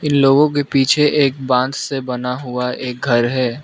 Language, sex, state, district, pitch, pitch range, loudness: Hindi, male, Arunachal Pradesh, Lower Dibang Valley, 130 Hz, 125-140 Hz, -16 LUFS